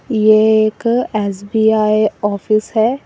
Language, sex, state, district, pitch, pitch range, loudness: Hindi, female, Assam, Sonitpur, 215 Hz, 215-220 Hz, -14 LUFS